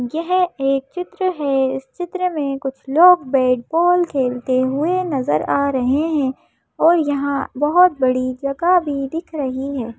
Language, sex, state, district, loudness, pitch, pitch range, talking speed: Hindi, female, Madhya Pradesh, Bhopal, -18 LUFS, 280 Hz, 265-345 Hz, 155 wpm